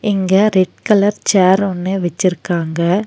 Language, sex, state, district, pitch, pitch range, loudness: Tamil, female, Tamil Nadu, Nilgiris, 190 Hz, 180-200 Hz, -15 LUFS